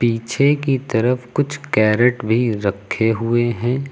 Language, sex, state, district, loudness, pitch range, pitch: Hindi, male, Uttar Pradesh, Lucknow, -18 LUFS, 115-130 Hz, 120 Hz